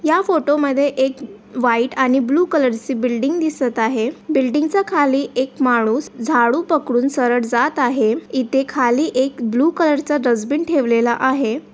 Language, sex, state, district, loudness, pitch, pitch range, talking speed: Marathi, female, Maharashtra, Aurangabad, -17 LUFS, 265 Hz, 245-290 Hz, 160 wpm